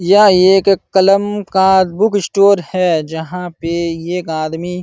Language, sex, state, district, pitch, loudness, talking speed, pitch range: Hindi, male, Uttar Pradesh, Jalaun, 185 Hz, -13 LUFS, 150 wpm, 170-195 Hz